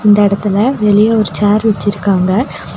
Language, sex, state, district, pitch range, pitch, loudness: Tamil, female, Tamil Nadu, Nilgiris, 200-215 Hz, 205 Hz, -12 LUFS